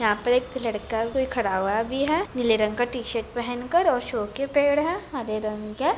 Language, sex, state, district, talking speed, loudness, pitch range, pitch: Hindi, female, Jharkhand, Jamtara, 230 wpm, -25 LUFS, 220-270 Hz, 245 Hz